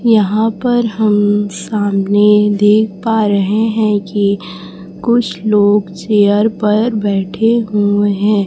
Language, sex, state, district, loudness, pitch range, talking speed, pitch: Hindi, female, Chhattisgarh, Raipur, -13 LUFS, 205-220 Hz, 115 wpm, 210 Hz